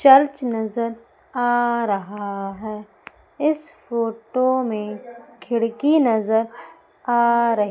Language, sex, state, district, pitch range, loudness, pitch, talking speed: Hindi, female, Madhya Pradesh, Umaria, 220-245 Hz, -21 LUFS, 235 Hz, 95 wpm